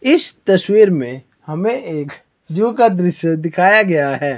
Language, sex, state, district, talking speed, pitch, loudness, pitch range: Hindi, male, Himachal Pradesh, Shimla, 150 wpm, 175 Hz, -15 LUFS, 150-215 Hz